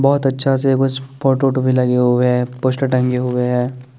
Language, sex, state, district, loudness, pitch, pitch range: Hindi, male, Chandigarh, Chandigarh, -16 LUFS, 130 Hz, 125-135 Hz